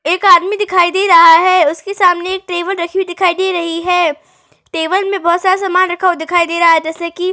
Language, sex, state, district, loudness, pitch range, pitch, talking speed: Hindi, female, Uttar Pradesh, Etah, -12 LUFS, 340-375 Hz, 355 Hz, 245 wpm